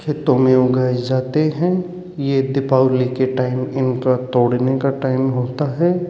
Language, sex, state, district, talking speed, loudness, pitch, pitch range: Hindi, male, Rajasthan, Jaipur, 150 wpm, -18 LUFS, 130 Hz, 130-150 Hz